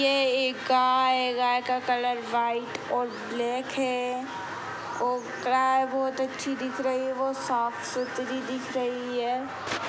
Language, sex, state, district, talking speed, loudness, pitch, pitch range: Hindi, female, Uttar Pradesh, Gorakhpur, 145 wpm, -27 LUFS, 255 Hz, 245-260 Hz